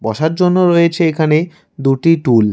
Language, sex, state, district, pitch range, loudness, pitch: Bengali, male, West Bengal, Cooch Behar, 135-170 Hz, -13 LUFS, 160 Hz